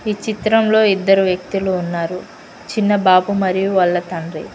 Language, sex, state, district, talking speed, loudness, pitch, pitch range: Telugu, female, Telangana, Mahabubabad, 120 wpm, -16 LUFS, 195 Hz, 180-210 Hz